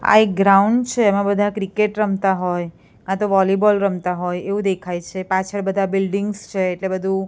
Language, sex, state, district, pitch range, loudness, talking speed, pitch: Gujarati, female, Gujarat, Gandhinagar, 190-205 Hz, -19 LUFS, 190 wpm, 195 Hz